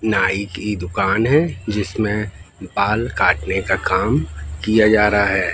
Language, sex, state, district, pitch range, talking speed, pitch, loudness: Hindi, male, Madhya Pradesh, Katni, 95-110 Hz, 140 wpm, 105 Hz, -18 LUFS